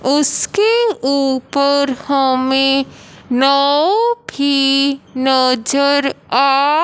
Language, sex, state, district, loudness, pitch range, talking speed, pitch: Hindi, male, Punjab, Fazilka, -14 LUFS, 265-285 Hz, 60 wpm, 275 Hz